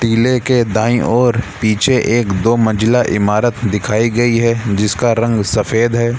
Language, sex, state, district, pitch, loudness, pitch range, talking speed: Hindi, male, Bihar, Gaya, 115 Hz, -14 LUFS, 110-120 Hz, 145 wpm